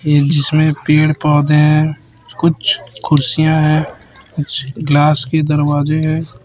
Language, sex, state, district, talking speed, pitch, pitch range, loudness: Hindi, male, Chhattisgarh, Raipur, 120 wpm, 150 Hz, 145-155 Hz, -14 LUFS